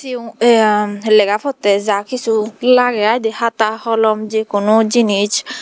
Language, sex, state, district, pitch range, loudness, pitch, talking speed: Chakma, female, Tripura, Dhalai, 210-230 Hz, -14 LUFS, 220 Hz, 150 wpm